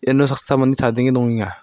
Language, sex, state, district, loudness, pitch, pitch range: Garo, male, Meghalaya, South Garo Hills, -17 LUFS, 130 Hz, 120-135 Hz